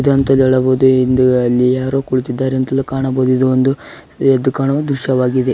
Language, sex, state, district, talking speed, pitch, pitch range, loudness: Kannada, male, Karnataka, Raichur, 150 wpm, 130 Hz, 130-135 Hz, -14 LUFS